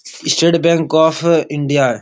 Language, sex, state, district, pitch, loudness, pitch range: Hindi, male, Bihar, Supaul, 160 Hz, -14 LUFS, 145-170 Hz